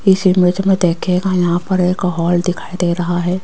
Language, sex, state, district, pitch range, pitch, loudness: Hindi, female, Rajasthan, Jaipur, 175-185 Hz, 180 Hz, -15 LUFS